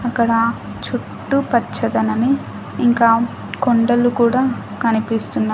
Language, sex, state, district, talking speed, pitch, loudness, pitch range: Telugu, female, Andhra Pradesh, Annamaya, 75 wpm, 235 Hz, -18 LUFS, 230-245 Hz